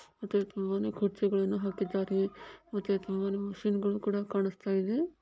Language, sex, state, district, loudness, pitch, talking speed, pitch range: Kannada, female, Karnataka, Bijapur, -32 LUFS, 200 Hz, 105 wpm, 195-205 Hz